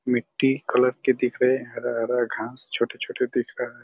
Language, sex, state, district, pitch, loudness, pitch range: Hindi, male, Chhattisgarh, Raigarh, 125 Hz, -24 LUFS, 125-135 Hz